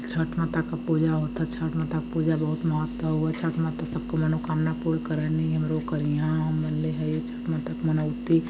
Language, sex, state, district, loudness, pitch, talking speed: Awadhi, male, Uttar Pradesh, Varanasi, -27 LUFS, 80 Hz, 195 wpm